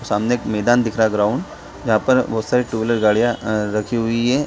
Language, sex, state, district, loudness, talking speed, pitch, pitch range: Hindi, male, Bihar, Saran, -19 LUFS, 230 wpm, 115 Hz, 105-120 Hz